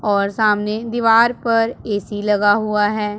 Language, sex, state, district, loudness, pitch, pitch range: Hindi, female, Punjab, Pathankot, -17 LUFS, 210 Hz, 205-225 Hz